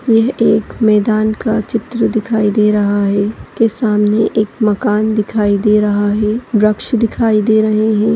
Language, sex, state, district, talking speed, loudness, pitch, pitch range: Hindi, female, Maharashtra, Solapur, 160 wpm, -14 LUFS, 215 Hz, 210-225 Hz